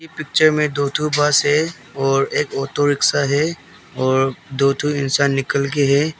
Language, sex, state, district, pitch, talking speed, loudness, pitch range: Hindi, male, Arunachal Pradesh, Longding, 140 Hz, 195 wpm, -18 LUFS, 135-150 Hz